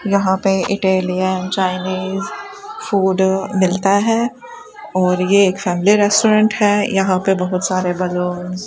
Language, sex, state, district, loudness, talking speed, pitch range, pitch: Hindi, female, Rajasthan, Bikaner, -16 LUFS, 130 wpm, 185-205 Hz, 195 Hz